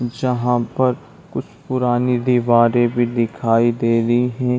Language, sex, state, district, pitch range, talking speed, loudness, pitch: Hindi, male, Chhattisgarh, Bilaspur, 120-125 Hz, 120 wpm, -18 LUFS, 120 Hz